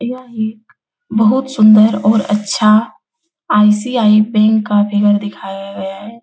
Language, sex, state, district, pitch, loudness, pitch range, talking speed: Hindi, female, Bihar, Jahanabad, 215 Hz, -13 LUFS, 205-230 Hz, 135 wpm